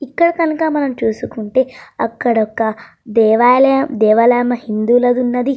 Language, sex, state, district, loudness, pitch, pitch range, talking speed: Telugu, female, Andhra Pradesh, Srikakulam, -15 LUFS, 245 Hz, 225-270 Hz, 120 wpm